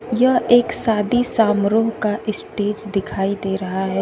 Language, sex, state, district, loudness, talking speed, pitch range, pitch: Hindi, female, Uttar Pradesh, Shamli, -19 LUFS, 150 wpm, 195-230 Hz, 210 Hz